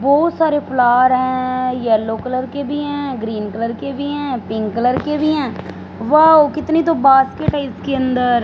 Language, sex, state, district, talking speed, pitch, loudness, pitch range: Hindi, female, Punjab, Fazilka, 185 wpm, 265 Hz, -16 LUFS, 245-290 Hz